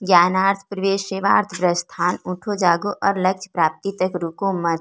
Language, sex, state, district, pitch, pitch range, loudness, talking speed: Hindi, female, Chhattisgarh, Korba, 185 Hz, 175-195 Hz, -20 LUFS, 160 wpm